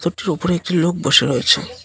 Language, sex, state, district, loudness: Bengali, male, West Bengal, Cooch Behar, -16 LUFS